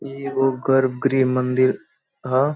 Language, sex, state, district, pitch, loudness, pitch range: Bhojpuri, male, Bihar, Saran, 130 Hz, -20 LUFS, 130-135 Hz